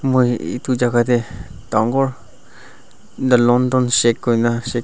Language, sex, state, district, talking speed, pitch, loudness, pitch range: Nagamese, male, Nagaland, Dimapur, 125 wpm, 120 Hz, -17 LUFS, 115-125 Hz